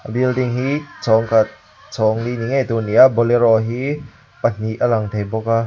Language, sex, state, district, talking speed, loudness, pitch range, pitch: Mizo, male, Mizoram, Aizawl, 220 wpm, -17 LUFS, 110-125 Hz, 115 Hz